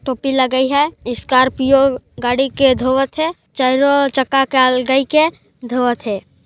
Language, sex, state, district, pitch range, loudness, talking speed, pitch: Chhattisgarhi, female, Chhattisgarh, Jashpur, 255-275 Hz, -15 LUFS, 130 wpm, 265 Hz